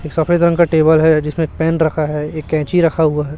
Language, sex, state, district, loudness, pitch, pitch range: Hindi, male, Chhattisgarh, Raipur, -15 LUFS, 160 Hz, 155-165 Hz